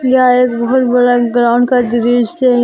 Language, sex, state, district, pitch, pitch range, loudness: Hindi, female, Jharkhand, Garhwa, 245 Hz, 240-250 Hz, -11 LUFS